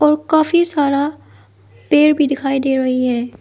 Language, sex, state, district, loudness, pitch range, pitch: Hindi, female, Arunachal Pradesh, Lower Dibang Valley, -15 LUFS, 250-300 Hz, 275 Hz